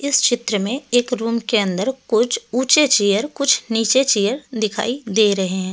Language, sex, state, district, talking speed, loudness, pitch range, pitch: Hindi, female, Delhi, New Delhi, 180 wpm, -18 LUFS, 210-265 Hz, 235 Hz